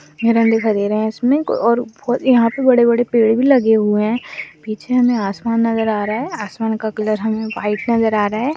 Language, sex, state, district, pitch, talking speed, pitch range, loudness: Hindi, female, Bihar, Madhepura, 225 Hz, 175 wpm, 215-240 Hz, -16 LUFS